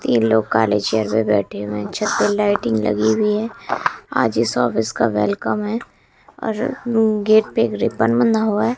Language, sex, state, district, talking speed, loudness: Hindi, female, Bihar, West Champaran, 190 wpm, -19 LUFS